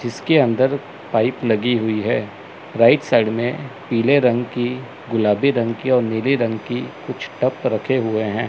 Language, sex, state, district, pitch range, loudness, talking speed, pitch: Hindi, male, Chandigarh, Chandigarh, 115-130 Hz, -19 LUFS, 170 wpm, 120 Hz